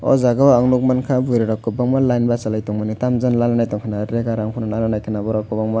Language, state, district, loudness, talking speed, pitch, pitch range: Kokborok, Tripura, West Tripura, -18 LUFS, 215 wpm, 115 Hz, 110-125 Hz